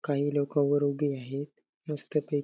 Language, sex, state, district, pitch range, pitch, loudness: Marathi, male, Maharashtra, Sindhudurg, 140-145 Hz, 145 Hz, -30 LUFS